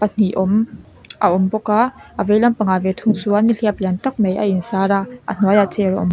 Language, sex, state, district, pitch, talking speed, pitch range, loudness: Mizo, female, Mizoram, Aizawl, 205 Hz, 245 wpm, 190-215 Hz, -17 LUFS